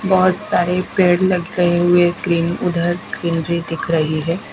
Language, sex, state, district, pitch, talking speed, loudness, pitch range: Hindi, female, Punjab, Fazilka, 175 Hz, 145 wpm, -17 LUFS, 170-180 Hz